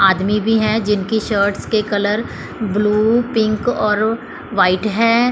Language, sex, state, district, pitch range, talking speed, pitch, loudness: Hindi, female, Chandigarh, Chandigarh, 205-225 Hz, 135 wpm, 215 Hz, -17 LUFS